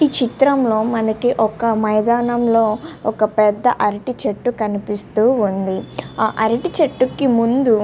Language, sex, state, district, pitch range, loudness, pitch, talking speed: Telugu, female, Andhra Pradesh, Krishna, 215-250 Hz, -17 LUFS, 230 Hz, 140 wpm